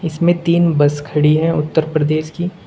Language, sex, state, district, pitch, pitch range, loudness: Hindi, male, Uttar Pradesh, Saharanpur, 155 Hz, 150-170 Hz, -16 LUFS